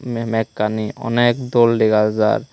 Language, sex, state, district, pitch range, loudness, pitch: Chakma, male, Tripura, Unakoti, 110-120 Hz, -17 LUFS, 115 Hz